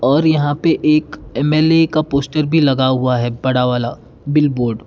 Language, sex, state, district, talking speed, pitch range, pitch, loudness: Hindi, male, Karnataka, Bangalore, 185 wpm, 125-155 Hz, 140 Hz, -15 LUFS